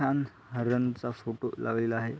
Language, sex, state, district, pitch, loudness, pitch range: Marathi, male, Maharashtra, Sindhudurg, 120 Hz, -31 LUFS, 115-125 Hz